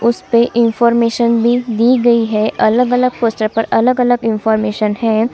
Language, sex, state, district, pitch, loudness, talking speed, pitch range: Hindi, female, Chhattisgarh, Sukma, 235 Hz, -13 LUFS, 135 wpm, 220-240 Hz